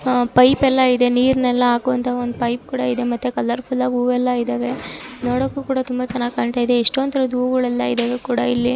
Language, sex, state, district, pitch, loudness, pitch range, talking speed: Kannada, female, Karnataka, Dharwad, 250 Hz, -19 LUFS, 245-255 Hz, 180 wpm